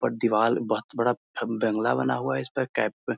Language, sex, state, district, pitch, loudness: Hindi, male, Bihar, Muzaffarpur, 110 Hz, -26 LUFS